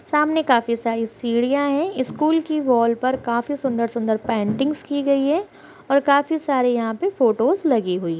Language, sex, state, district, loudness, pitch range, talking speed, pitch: Hindi, female, Bihar, Saharsa, -20 LUFS, 235-295 Hz, 185 wpm, 260 Hz